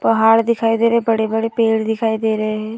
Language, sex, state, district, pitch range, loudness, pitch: Hindi, female, Uttar Pradesh, Hamirpur, 220-230 Hz, -16 LUFS, 225 Hz